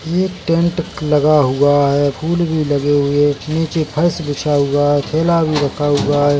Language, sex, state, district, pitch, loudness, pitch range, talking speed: Hindi, male, Chhattisgarh, Bilaspur, 150 Hz, -15 LUFS, 145-160 Hz, 180 wpm